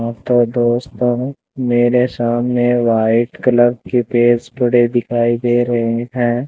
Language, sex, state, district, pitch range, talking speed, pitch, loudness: Hindi, male, Rajasthan, Bikaner, 120-125 Hz, 140 wpm, 120 Hz, -15 LUFS